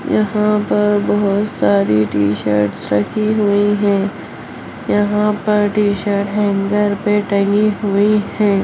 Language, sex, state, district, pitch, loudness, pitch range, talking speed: Hindi, female, Bihar, Lakhisarai, 205 Hz, -16 LUFS, 200-210 Hz, 110 wpm